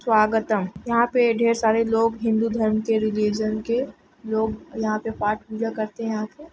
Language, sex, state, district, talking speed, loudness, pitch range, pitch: Hindi, female, Uttar Pradesh, Etah, 185 wpm, -23 LUFS, 215-230 Hz, 220 Hz